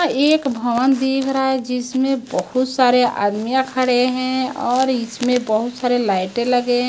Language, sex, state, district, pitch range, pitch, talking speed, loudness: Hindi, female, Chhattisgarh, Raipur, 245-265 Hz, 250 Hz, 155 wpm, -18 LUFS